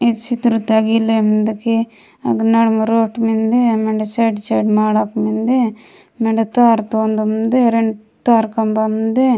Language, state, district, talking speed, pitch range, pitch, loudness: Gondi, Chhattisgarh, Sukma, 110 wpm, 220-230 Hz, 225 Hz, -16 LUFS